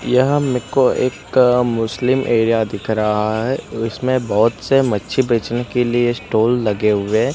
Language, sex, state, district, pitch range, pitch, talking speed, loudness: Hindi, male, Gujarat, Gandhinagar, 110-125 Hz, 115 Hz, 155 wpm, -17 LUFS